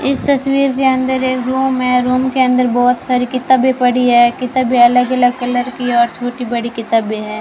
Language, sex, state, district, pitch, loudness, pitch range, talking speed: Hindi, female, Rajasthan, Bikaner, 250 Hz, -14 LUFS, 245-260 Hz, 185 wpm